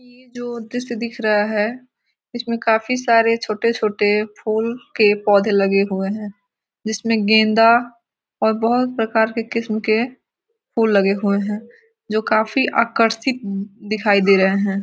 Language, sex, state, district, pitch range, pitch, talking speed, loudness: Hindi, female, Bihar, Gopalganj, 210-235 Hz, 220 Hz, 140 wpm, -18 LUFS